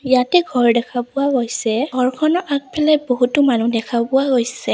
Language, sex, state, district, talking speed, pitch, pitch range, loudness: Assamese, female, Assam, Sonitpur, 150 wpm, 255 Hz, 240-285 Hz, -17 LUFS